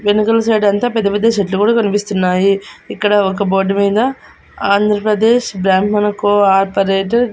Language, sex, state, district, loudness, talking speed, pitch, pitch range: Telugu, female, Andhra Pradesh, Annamaya, -14 LUFS, 130 wpm, 205 Hz, 195-215 Hz